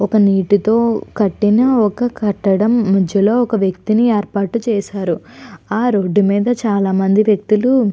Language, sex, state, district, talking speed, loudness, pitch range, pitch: Telugu, female, Andhra Pradesh, Chittoor, 120 wpm, -15 LUFS, 200-230 Hz, 210 Hz